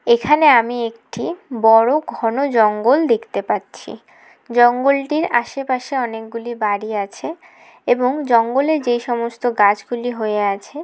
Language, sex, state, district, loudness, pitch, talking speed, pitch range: Bengali, female, West Bengal, Jalpaiguri, -17 LUFS, 240 Hz, 115 wpm, 225-275 Hz